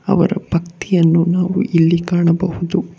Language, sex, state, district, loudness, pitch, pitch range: Kannada, male, Karnataka, Bangalore, -16 LUFS, 175 Hz, 170-185 Hz